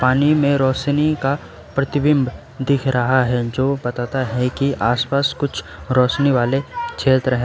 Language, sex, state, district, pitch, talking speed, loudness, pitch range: Hindi, male, West Bengal, Alipurduar, 130 Hz, 145 wpm, -19 LUFS, 125-140 Hz